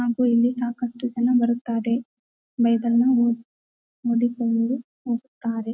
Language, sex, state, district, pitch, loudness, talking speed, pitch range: Kannada, female, Karnataka, Bellary, 235 Hz, -23 LUFS, 95 wpm, 235-245 Hz